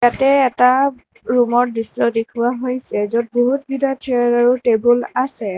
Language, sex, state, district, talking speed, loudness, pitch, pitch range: Assamese, female, Assam, Kamrup Metropolitan, 140 wpm, -17 LUFS, 245 Hz, 240-255 Hz